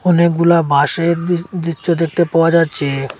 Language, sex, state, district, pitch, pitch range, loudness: Bengali, male, Assam, Hailakandi, 170 Hz, 165-170 Hz, -15 LUFS